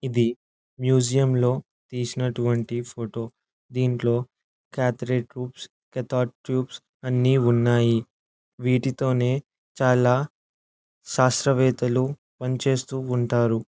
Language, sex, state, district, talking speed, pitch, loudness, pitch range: Telugu, male, Andhra Pradesh, Anantapur, 85 wpm, 125 Hz, -24 LUFS, 120-130 Hz